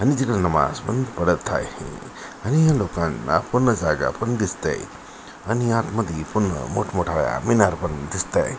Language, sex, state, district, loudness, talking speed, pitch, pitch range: Marathi, female, Maharashtra, Aurangabad, -22 LUFS, 140 wpm, 100 Hz, 85-120 Hz